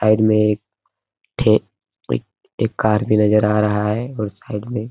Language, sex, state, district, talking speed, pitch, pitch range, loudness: Hindi, male, Uttar Pradesh, Hamirpur, 195 wpm, 105 Hz, 105-110 Hz, -19 LUFS